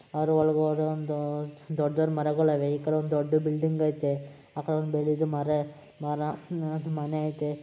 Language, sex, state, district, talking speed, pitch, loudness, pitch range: Kannada, male, Karnataka, Mysore, 155 wpm, 150 Hz, -28 LUFS, 150-155 Hz